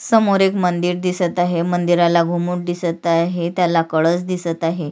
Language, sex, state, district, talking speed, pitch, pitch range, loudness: Marathi, female, Maharashtra, Sindhudurg, 160 wpm, 175 Hz, 170-180 Hz, -18 LUFS